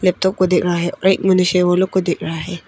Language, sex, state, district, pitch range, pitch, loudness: Hindi, female, Arunachal Pradesh, Papum Pare, 175-190 Hz, 180 Hz, -16 LUFS